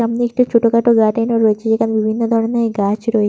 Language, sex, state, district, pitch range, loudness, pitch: Bengali, female, West Bengal, Purulia, 220-230 Hz, -15 LUFS, 230 Hz